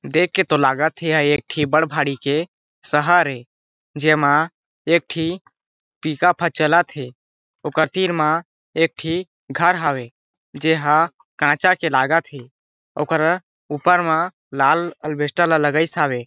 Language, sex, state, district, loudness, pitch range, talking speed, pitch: Chhattisgarhi, male, Chhattisgarh, Jashpur, -19 LUFS, 145-170 Hz, 155 wpm, 155 Hz